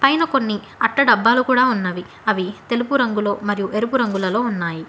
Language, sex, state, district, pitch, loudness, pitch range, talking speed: Telugu, female, Telangana, Hyderabad, 225 Hz, -19 LUFS, 200-250 Hz, 145 wpm